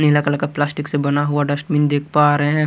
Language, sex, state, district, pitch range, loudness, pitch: Hindi, male, Haryana, Rohtak, 145-150 Hz, -18 LUFS, 145 Hz